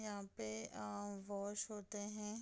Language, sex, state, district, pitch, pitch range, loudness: Hindi, female, Bihar, Darbhanga, 205 Hz, 130-210 Hz, -46 LUFS